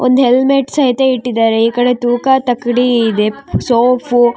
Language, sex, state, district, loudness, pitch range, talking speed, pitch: Kannada, female, Karnataka, Shimoga, -12 LUFS, 240-255 Hz, 150 wpm, 245 Hz